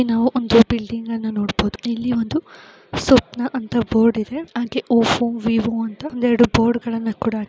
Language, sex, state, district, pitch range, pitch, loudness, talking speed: Kannada, female, Karnataka, Chamarajanagar, 225-245 Hz, 230 Hz, -19 LUFS, 170 wpm